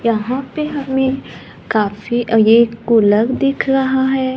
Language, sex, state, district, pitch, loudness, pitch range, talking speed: Hindi, female, Maharashtra, Gondia, 250 Hz, -15 LUFS, 225-265 Hz, 125 wpm